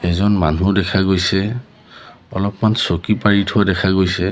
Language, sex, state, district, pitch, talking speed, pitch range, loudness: Assamese, male, Assam, Sonitpur, 95 Hz, 140 wpm, 95-105 Hz, -16 LUFS